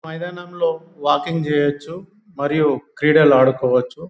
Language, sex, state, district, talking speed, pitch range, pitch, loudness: Telugu, male, Telangana, Nalgonda, 105 wpm, 145-170 Hz, 155 Hz, -18 LUFS